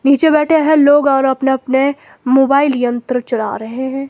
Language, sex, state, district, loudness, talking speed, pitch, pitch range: Hindi, female, Himachal Pradesh, Shimla, -14 LUFS, 175 wpm, 270 Hz, 255-285 Hz